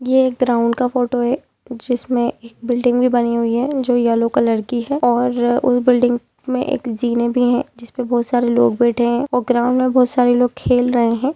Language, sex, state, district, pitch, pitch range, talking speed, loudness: Hindi, female, Jharkhand, Jamtara, 245 Hz, 240-250 Hz, 215 wpm, -17 LUFS